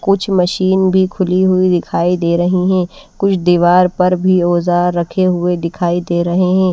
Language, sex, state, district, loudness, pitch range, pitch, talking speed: Hindi, female, Odisha, Malkangiri, -14 LUFS, 175-185 Hz, 180 Hz, 180 wpm